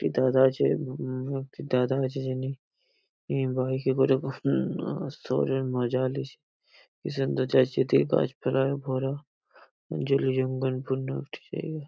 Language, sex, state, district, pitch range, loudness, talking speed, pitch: Bengali, male, West Bengal, Paschim Medinipur, 130-135 Hz, -27 LUFS, 135 wpm, 130 Hz